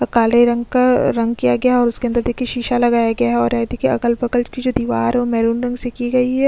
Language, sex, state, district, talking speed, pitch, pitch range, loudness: Hindi, female, Chhattisgarh, Sukma, 275 wpm, 240 Hz, 230-245 Hz, -17 LUFS